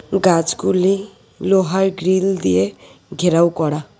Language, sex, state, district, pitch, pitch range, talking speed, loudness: Bengali, female, West Bengal, Cooch Behar, 185 Hz, 165-190 Hz, 90 wpm, -17 LUFS